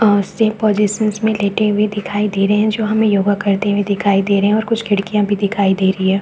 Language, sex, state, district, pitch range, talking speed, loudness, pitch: Hindi, male, Chhattisgarh, Balrampur, 200-215 Hz, 260 wpm, -16 LUFS, 205 Hz